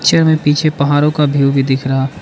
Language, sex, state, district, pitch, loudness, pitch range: Hindi, male, Arunachal Pradesh, Lower Dibang Valley, 145 Hz, -13 LUFS, 135-150 Hz